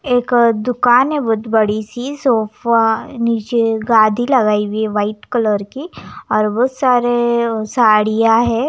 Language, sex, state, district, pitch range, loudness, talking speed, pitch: Hindi, female, Himachal Pradesh, Shimla, 215-245 Hz, -15 LUFS, 125 wpm, 230 Hz